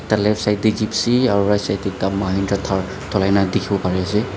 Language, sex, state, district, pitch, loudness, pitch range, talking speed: Nagamese, male, Nagaland, Dimapur, 100 Hz, -19 LUFS, 95-105 Hz, 165 wpm